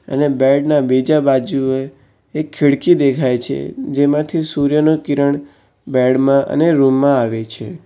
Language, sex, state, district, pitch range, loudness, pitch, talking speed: Gujarati, male, Gujarat, Valsad, 130-150 Hz, -15 LUFS, 140 Hz, 145 wpm